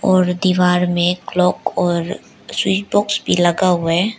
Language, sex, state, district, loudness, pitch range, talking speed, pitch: Hindi, female, Arunachal Pradesh, Lower Dibang Valley, -17 LUFS, 175-190 Hz, 155 wpm, 180 Hz